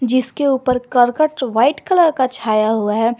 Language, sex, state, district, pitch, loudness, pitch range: Hindi, male, Jharkhand, Garhwa, 255 Hz, -16 LUFS, 230-275 Hz